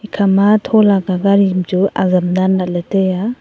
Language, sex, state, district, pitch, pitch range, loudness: Wancho, female, Arunachal Pradesh, Longding, 195 Hz, 185-205 Hz, -14 LUFS